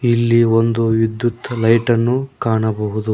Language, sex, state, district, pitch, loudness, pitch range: Kannada, male, Karnataka, Koppal, 115 Hz, -16 LUFS, 110-120 Hz